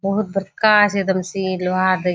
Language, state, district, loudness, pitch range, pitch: Surjapuri, Bihar, Kishanganj, -18 LUFS, 185-195 Hz, 190 Hz